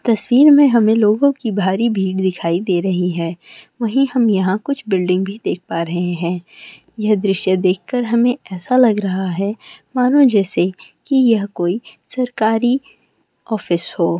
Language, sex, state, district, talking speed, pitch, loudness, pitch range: Hindi, female, West Bengal, Malda, 155 wpm, 205 Hz, -17 LUFS, 180-240 Hz